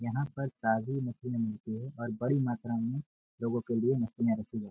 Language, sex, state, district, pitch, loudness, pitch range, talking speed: Hindi, male, Jharkhand, Sahebganj, 120 Hz, -33 LUFS, 115-130 Hz, 215 wpm